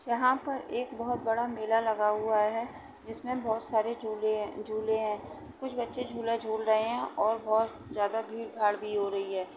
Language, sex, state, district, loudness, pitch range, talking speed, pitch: Hindi, female, Uttar Pradesh, Etah, -31 LUFS, 215-235 Hz, 180 wpm, 220 Hz